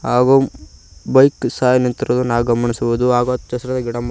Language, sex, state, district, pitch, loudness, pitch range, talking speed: Kannada, male, Karnataka, Koppal, 125 Hz, -16 LUFS, 120-125 Hz, 160 wpm